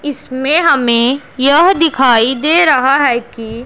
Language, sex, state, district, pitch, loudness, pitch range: Hindi, female, Punjab, Pathankot, 270 Hz, -11 LUFS, 245-300 Hz